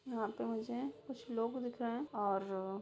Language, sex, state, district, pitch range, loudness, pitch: Hindi, female, Bihar, Begusarai, 205-245 Hz, -40 LUFS, 235 Hz